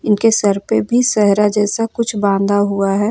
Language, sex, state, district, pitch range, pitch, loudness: Hindi, female, Jharkhand, Ranchi, 200-225 Hz, 210 Hz, -15 LUFS